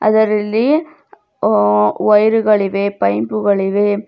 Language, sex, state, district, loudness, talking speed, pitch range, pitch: Kannada, female, Karnataka, Bidar, -14 LUFS, 75 wpm, 195-215 Hz, 205 Hz